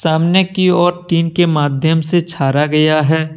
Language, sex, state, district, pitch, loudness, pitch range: Hindi, male, Jharkhand, Deoghar, 165 Hz, -14 LUFS, 155-175 Hz